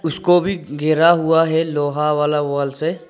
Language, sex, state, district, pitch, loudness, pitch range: Hindi, male, Arunachal Pradesh, Longding, 160 Hz, -17 LUFS, 150-165 Hz